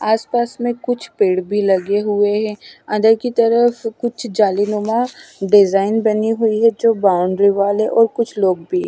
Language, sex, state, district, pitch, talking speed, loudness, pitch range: Hindi, female, Punjab, Fazilka, 220 Hz, 170 wpm, -16 LUFS, 205-235 Hz